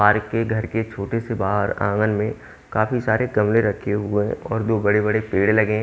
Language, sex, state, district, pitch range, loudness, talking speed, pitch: Hindi, male, Haryana, Jhajjar, 105-115 Hz, -21 LUFS, 215 wpm, 110 Hz